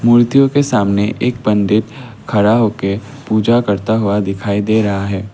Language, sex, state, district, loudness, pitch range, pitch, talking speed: Hindi, male, Assam, Kamrup Metropolitan, -14 LUFS, 100-120 Hz, 110 Hz, 170 wpm